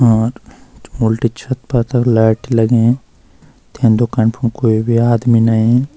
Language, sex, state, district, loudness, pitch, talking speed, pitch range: Garhwali, male, Uttarakhand, Uttarkashi, -14 LUFS, 115 Hz, 140 wpm, 110-120 Hz